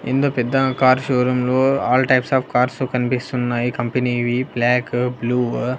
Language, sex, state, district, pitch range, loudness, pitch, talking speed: Telugu, male, Andhra Pradesh, Annamaya, 125-130 Hz, -19 LUFS, 125 Hz, 135 wpm